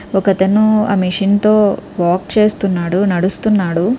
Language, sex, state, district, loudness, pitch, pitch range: Telugu, female, Andhra Pradesh, Krishna, -14 LUFS, 195 Hz, 185-210 Hz